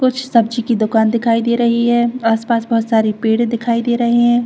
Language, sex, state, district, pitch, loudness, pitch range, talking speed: Hindi, female, Chhattisgarh, Rajnandgaon, 235 Hz, -15 LUFS, 225-240 Hz, 215 wpm